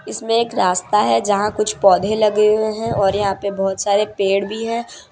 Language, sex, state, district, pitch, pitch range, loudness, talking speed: Hindi, female, Gujarat, Valsad, 205 Hz, 195-215 Hz, -17 LUFS, 210 wpm